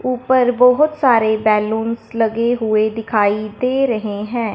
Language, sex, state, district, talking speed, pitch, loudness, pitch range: Hindi, male, Punjab, Fazilka, 130 wpm, 225 Hz, -16 LUFS, 215-250 Hz